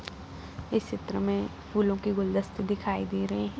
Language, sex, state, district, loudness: Hindi, female, Bihar, Saran, -30 LUFS